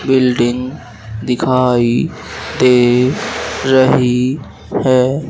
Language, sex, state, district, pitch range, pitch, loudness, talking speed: Hindi, male, Madhya Pradesh, Dhar, 120-130 Hz, 125 Hz, -14 LUFS, 55 wpm